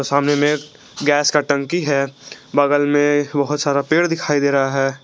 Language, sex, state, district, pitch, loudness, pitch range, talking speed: Hindi, male, Jharkhand, Garhwa, 145 Hz, -17 LUFS, 140-150 Hz, 180 wpm